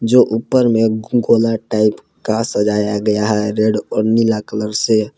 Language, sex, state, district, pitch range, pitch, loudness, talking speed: Hindi, male, Jharkhand, Palamu, 105-115 Hz, 110 Hz, -16 LUFS, 160 wpm